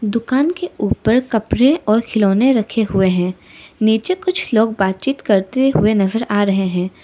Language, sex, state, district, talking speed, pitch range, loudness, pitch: Hindi, female, Arunachal Pradesh, Lower Dibang Valley, 160 wpm, 200-260 Hz, -16 LUFS, 220 Hz